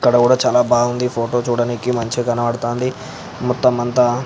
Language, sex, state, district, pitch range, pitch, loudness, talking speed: Telugu, male, Andhra Pradesh, Anantapur, 120-125 Hz, 120 Hz, -17 LUFS, 140 wpm